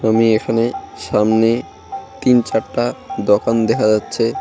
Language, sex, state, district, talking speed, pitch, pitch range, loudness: Bengali, male, West Bengal, Cooch Behar, 110 wpm, 115 Hz, 110-120 Hz, -16 LUFS